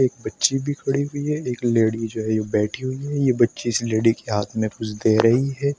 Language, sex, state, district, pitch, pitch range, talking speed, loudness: Hindi, male, Uttar Pradesh, Shamli, 120 Hz, 110-135 Hz, 260 wpm, -22 LUFS